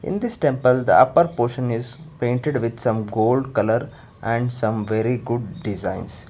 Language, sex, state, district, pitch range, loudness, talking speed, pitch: English, male, Karnataka, Bangalore, 110-130 Hz, -21 LUFS, 160 wpm, 120 Hz